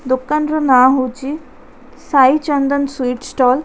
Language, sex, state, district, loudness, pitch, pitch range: Odia, female, Odisha, Khordha, -15 LUFS, 270 Hz, 255-295 Hz